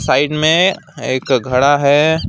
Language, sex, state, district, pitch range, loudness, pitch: Hindi, male, West Bengal, Alipurduar, 130-155 Hz, -14 LUFS, 145 Hz